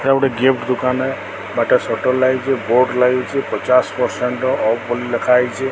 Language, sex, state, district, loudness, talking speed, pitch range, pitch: Odia, male, Odisha, Sambalpur, -17 LUFS, 180 wpm, 125-130 Hz, 125 Hz